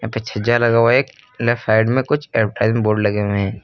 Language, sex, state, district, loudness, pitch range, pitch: Hindi, male, Uttar Pradesh, Lucknow, -17 LUFS, 105-120 Hz, 110 Hz